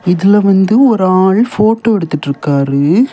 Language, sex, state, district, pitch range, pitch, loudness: Tamil, male, Tamil Nadu, Kanyakumari, 165-220 Hz, 190 Hz, -11 LUFS